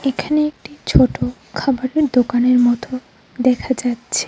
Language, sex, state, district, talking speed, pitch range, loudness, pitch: Bengali, female, Tripura, Unakoti, 110 wpm, 245-270 Hz, -17 LUFS, 255 Hz